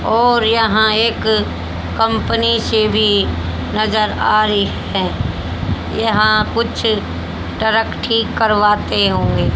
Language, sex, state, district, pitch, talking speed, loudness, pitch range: Hindi, female, Haryana, Rohtak, 220 Hz, 100 wpm, -15 LUFS, 215-225 Hz